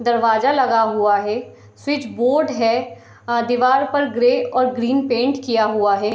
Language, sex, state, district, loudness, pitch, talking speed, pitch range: Hindi, female, Bihar, Darbhanga, -18 LUFS, 240 Hz, 165 wpm, 225-260 Hz